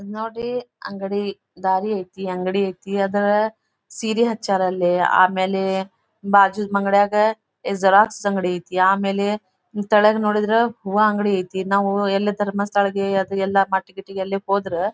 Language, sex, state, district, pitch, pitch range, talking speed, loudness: Kannada, female, Karnataka, Dharwad, 200 Hz, 190-210 Hz, 135 wpm, -20 LUFS